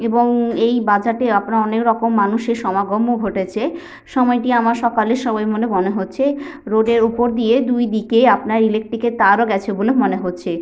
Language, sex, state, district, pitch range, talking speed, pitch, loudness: Bengali, female, West Bengal, Paschim Medinipur, 215-240 Hz, 190 wpm, 230 Hz, -17 LUFS